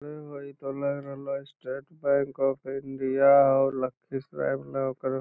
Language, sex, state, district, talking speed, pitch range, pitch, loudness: Magahi, male, Bihar, Lakhisarai, 185 wpm, 135-140 Hz, 135 Hz, -27 LUFS